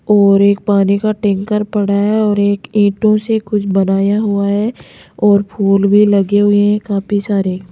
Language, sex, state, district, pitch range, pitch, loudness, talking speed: Hindi, female, Rajasthan, Jaipur, 200-210 Hz, 205 Hz, -13 LUFS, 180 wpm